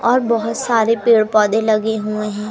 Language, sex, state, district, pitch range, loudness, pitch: Hindi, female, Madhya Pradesh, Umaria, 215-230 Hz, -16 LUFS, 220 Hz